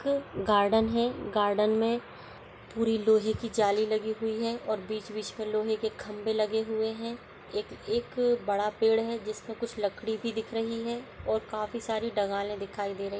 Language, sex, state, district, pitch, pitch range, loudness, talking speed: Hindi, female, Uttar Pradesh, Budaun, 220 Hz, 215-230 Hz, -30 LUFS, 185 wpm